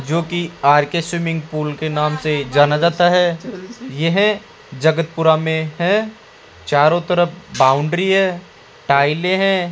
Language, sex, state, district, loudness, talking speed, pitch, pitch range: Hindi, male, Rajasthan, Jaipur, -17 LUFS, 125 wpm, 165 Hz, 150-175 Hz